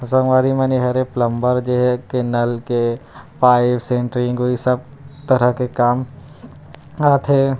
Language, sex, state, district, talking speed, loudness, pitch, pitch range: Chhattisgarhi, male, Chhattisgarh, Rajnandgaon, 150 wpm, -17 LUFS, 125 Hz, 125-130 Hz